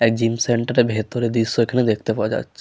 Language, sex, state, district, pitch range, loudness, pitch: Bengali, male, West Bengal, Malda, 110-120 Hz, -20 LUFS, 115 Hz